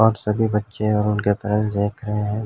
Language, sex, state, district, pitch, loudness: Hindi, male, Jharkhand, Jamtara, 105 Hz, -21 LUFS